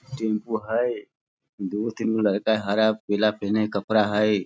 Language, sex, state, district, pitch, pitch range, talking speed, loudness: Hindi, male, Bihar, Sitamarhi, 110 Hz, 105-110 Hz, 160 wpm, -24 LUFS